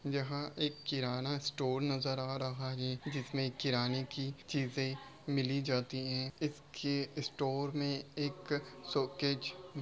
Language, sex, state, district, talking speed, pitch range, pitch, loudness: Hindi, male, Bihar, Jamui, 135 wpm, 130-145 Hz, 140 Hz, -37 LUFS